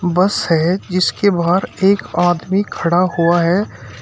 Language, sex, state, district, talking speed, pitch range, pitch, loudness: Hindi, male, Uttar Pradesh, Shamli, 135 wpm, 170-190 Hz, 175 Hz, -16 LUFS